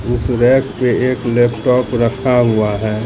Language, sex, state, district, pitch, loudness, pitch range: Hindi, male, Bihar, Katihar, 120 Hz, -14 LUFS, 115-125 Hz